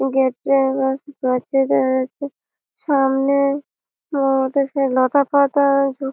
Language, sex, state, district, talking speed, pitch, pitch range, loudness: Bengali, female, West Bengal, Malda, 60 wpm, 270 Hz, 265-280 Hz, -18 LUFS